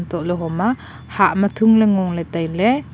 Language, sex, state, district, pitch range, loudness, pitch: Wancho, female, Arunachal Pradesh, Longding, 170-220 Hz, -18 LUFS, 190 Hz